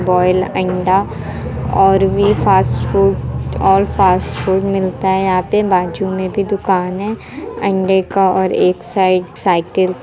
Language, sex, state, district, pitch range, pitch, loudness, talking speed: Hindi, female, Bihar, Muzaffarpur, 185-195 Hz, 190 Hz, -15 LUFS, 150 wpm